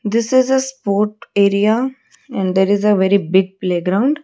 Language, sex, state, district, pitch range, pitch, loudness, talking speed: English, female, Odisha, Malkangiri, 190-250 Hz, 205 Hz, -16 LUFS, 170 wpm